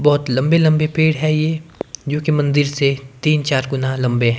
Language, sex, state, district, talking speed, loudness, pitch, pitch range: Hindi, male, Himachal Pradesh, Shimla, 190 wpm, -17 LUFS, 145 Hz, 130-155 Hz